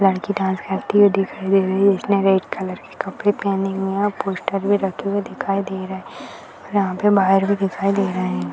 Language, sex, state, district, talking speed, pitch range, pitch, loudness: Hindi, female, Bihar, Purnia, 225 wpm, 190-200 Hz, 195 Hz, -20 LUFS